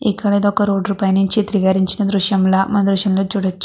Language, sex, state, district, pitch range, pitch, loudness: Telugu, female, Andhra Pradesh, Krishna, 195-205 Hz, 200 Hz, -16 LUFS